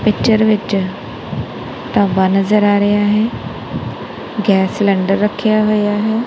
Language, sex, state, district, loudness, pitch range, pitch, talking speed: Punjabi, female, Punjab, Kapurthala, -15 LUFS, 195-215 Hz, 205 Hz, 115 wpm